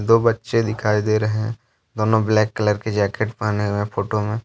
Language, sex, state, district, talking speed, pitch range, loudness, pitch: Hindi, male, Jharkhand, Deoghar, 215 wpm, 105-110 Hz, -20 LUFS, 110 Hz